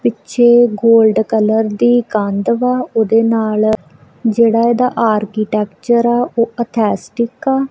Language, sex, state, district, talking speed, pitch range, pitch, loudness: Punjabi, female, Punjab, Kapurthala, 115 wpm, 215-240 Hz, 230 Hz, -14 LUFS